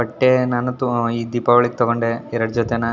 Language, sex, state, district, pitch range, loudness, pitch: Kannada, male, Karnataka, Shimoga, 115-120 Hz, -19 LUFS, 120 Hz